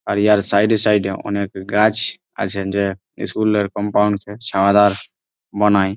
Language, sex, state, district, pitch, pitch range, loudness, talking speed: Bengali, male, West Bengal, Jalpaiguri, 100 Hz, 100-105 Hz, -17 LUFS, 160 wpm